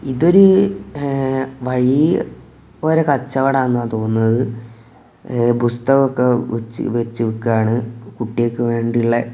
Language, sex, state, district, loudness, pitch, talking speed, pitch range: Malayalam, male, Kerala, Kozhikode, -17 LUFS, 120 Hz, 90 wpm, 115-130 Hz